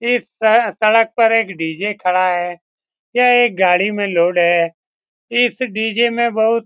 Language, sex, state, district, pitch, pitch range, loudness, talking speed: Hindi, male, Bihar, Saran, 220 Hz, 180-235 Hz, -15 LUFS, 170 wpm